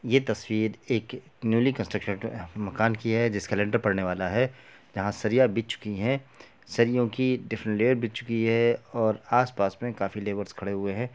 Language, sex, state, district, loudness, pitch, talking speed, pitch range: Hindi, male, Bihar, Gopalganj, -27 LUFS, 115 Hz, 180 wpm, 105-120 Hz